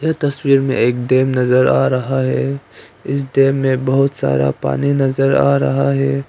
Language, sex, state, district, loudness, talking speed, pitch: Hindi, female, Arunachal Pradesh, Papum Pare, -15 LUFS, 170 wpm, 130 Hz